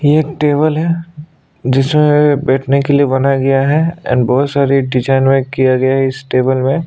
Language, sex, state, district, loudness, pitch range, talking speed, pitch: Hindi, male, Chhattisgarh, Sukma, -13 LUFS, 130-150 Hz, 185 wpm, 135 Hz